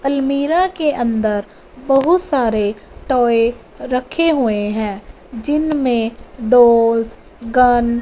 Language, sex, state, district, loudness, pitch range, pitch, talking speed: Hindi, female, Punjab, Fazilka, -16 LUFS, 230-275 Hz, 245 Hz, 95 wpm